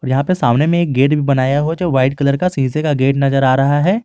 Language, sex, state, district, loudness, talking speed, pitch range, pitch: Hindi, male, Jharkhand, Garhwa, -15 LUFS, 295 wpm, 135-155 Hz, 140 Hz